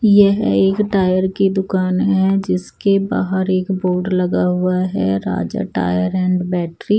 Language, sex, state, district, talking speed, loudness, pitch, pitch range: Hindi, male, Odisha, Nuapada, 155 wpm, -17 LUFS, 185 Hz, 180-195 Hz